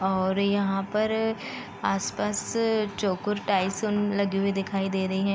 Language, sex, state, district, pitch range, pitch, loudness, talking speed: Hindi, female, Bihar, Gopalganj, 195-210 Hz, 200 Hz, -27 LUFS, 110 wpm